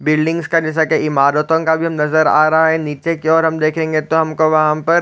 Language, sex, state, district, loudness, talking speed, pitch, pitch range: Hindi, male, Chhattisgarh, Raigarh, -15 LUFS, 240 wpm, 160 Hz, 155-160 Hz